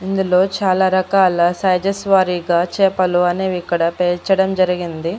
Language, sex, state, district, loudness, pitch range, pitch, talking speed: Telugu, female, Andhra Pradesh, Annamaya, -16 LUFS, 175-190 Hz, 185 Hz, 115 wpm